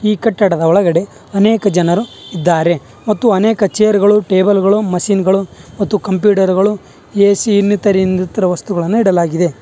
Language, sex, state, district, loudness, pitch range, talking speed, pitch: Kannada, male, Karnataka, Bangalore, -13 LUFS, 180-210 Hz, 135 wpm, 200 Hz